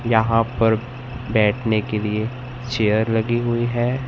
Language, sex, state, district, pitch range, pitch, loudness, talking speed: Hindi, male, Madhya Pradesh, Katni, 110-125 Hz, 115 Hz, -20 LUFS, 130 wpm